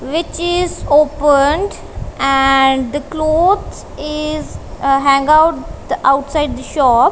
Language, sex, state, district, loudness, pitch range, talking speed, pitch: English, female, Punjab, Kapurthala, -14 LUFS, 275-310 Hz, 100 wpm, 295 Hz